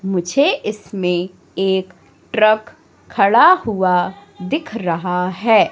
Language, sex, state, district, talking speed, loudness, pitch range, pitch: Hindi, female, Madhya Pradesh, Katni, 95 wpm, -17 LUFS, 180-215 Hz, 190 Hz